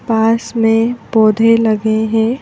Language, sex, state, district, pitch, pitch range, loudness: Hindi, female, Madhya Pradesh, Bhopal, 225 Hz, 220-230 Hz, -13 LUFS